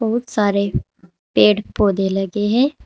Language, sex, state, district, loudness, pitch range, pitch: Hindi, female, Uttar Pradesh, Shamli, -18 LUFS, 195-225 Hz, 205 Hz